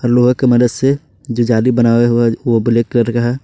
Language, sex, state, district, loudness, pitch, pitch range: Hindi, male, Jharkhand, Ranchi, -13 LUFS, 120 Hz, 115-125 Hz